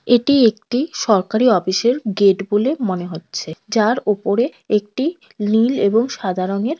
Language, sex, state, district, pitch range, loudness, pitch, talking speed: Bengali, female, West Bengal, North 24 Parganas, 200-245 Hz, -18 LUFS, 215 Hz, 130 wpm